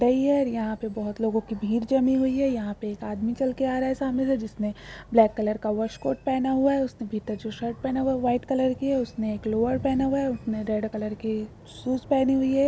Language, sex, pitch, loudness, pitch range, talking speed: Hindi, female, 235 Hz, -26 LUFS, 220-265 Hz, 255 wpm